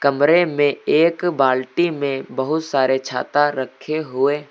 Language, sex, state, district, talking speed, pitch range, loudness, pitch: Hindi, male, Uttar Pradesh, Lucknow, 135 wpm, 135-155 Hz, -19 LUFS, 145 Hz